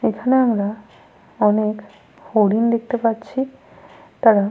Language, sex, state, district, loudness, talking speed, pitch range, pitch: Bengali, female, Jharkhand, Sahebganj, -19 LUFS, 105 wpm, 210-245 Hz, 225 Hz